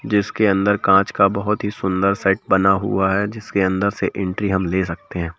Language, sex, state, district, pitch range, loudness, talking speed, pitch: Hindi, male, Madhya Pradesh, Bhopal, 95-100 Hz, -19 LUFS, 210 wpm, 95 Hz